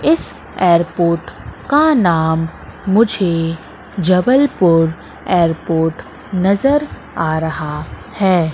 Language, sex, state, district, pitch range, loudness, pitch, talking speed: Hindi, female, Madhya Pradesh, Katni, 165-205 Hz, -15 LUFS, 175 Hz, 75 wpm